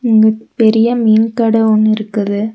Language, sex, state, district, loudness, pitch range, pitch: Tamil, female, Tamil Nadu, Nilgiris, -12 LUFS, 215-225 Hz, 220 Hz